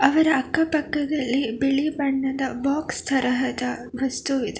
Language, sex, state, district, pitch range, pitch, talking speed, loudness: Kannada, female, Karnataka, Bangalore, 260-295 Hz, 270 Hz, 115 wpm, -23 LUFS